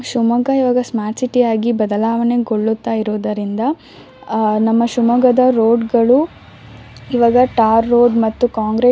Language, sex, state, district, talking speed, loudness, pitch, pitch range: Kannada, female, Karnataka, Shimoga, 120 wpm, -15 LUFS, 235 Hz, 220-245 Hz